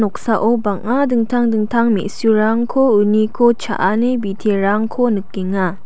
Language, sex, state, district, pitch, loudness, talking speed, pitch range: Garo, female, Meghalaya, South Garo Hills, 220 Hz, -16 LUFS, 90 wpm, 205-235 Hz